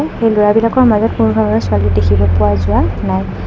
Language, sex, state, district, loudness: Assamese, female, Assam, Kamrup Metropolitan, -13 LUFS